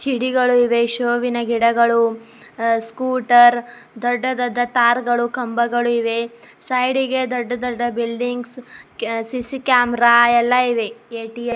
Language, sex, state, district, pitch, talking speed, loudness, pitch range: Kannada, female, Karnataka, Bidar, 240 Hz, 115 wpm, -18 LUFS, 235-245 Hz